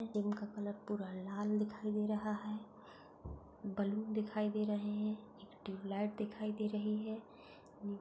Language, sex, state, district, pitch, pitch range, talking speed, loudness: Hindi, female, Maharashtra, Pune, 210 Hz, 205-215 Hz, 150 wpm, -40 LUFS